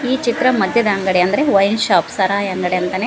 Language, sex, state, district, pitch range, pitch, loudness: Kannada, female, Karnataka, Koppal, 190-245 Hz, 200 Hz, -16 LUFS